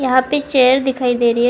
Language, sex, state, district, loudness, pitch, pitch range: Hindi, female, Karnataka, Bangalore, -15 LUFS, 255 Hz, 245-265 Hz